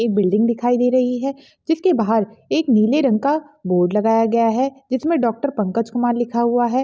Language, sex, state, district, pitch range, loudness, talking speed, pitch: Hindi, female, Bihar, Begusarai, 225-270 Hz, -18 LUFS, 200 wpm, 240 Hz